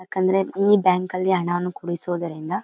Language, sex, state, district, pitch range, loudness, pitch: Kannada, female, Karnataka, Mysore, 175-190 Hz, -22 LUFS, 185 Hz